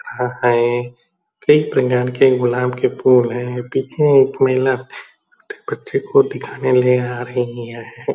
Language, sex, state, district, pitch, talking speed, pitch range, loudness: Hindi, female, Bihar, Purnia, 125 Hz, 140 wpm, 125-135 Hz, -17 LUFS